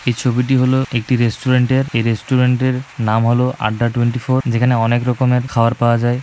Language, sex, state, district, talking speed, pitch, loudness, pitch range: Bengali, male, West Bengal, Malda, 185 wpm, 125 Hz, -16 LUFS, 120-130 Hz